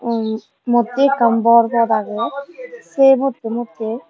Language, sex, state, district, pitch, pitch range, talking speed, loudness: Chakma, female, Tripura, Dhalai, 235 Hz, 225-270 Hz, 130 wpm, -16 LUFS